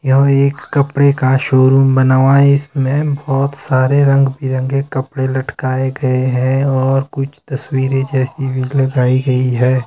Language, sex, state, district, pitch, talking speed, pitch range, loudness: Hindi, male, Himachal Pradesh, Shimla, 135 Hz, 150 wpm, 130-140 Hz, -14 LUFS